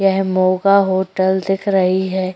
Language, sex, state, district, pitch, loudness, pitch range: Hindi, female, Uttar Pradesh, Jyotiba Phule Nagar, 190 Hz, -16 LUFS, 185-195 Hz